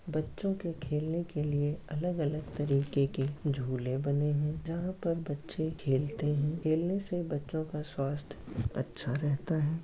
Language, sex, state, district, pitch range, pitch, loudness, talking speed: Hindi, male, Bihar, Muzaffarpur, 145-165 Hz, 150 Hz, -33 LUFS, 145 wpm